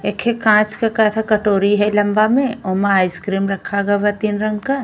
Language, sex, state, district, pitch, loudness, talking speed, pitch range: Bhojpuri, female, Uttar Pradesh, Ghazipur, 210 Hz, -17 LUFS, 200 wpm, 200-220 Hz